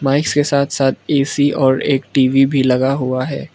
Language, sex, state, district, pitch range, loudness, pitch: Hindi, male, Arunachal Pradesh, Lower Dibang Valley, 130-140 Hz, -15 LUFS, 135 Hz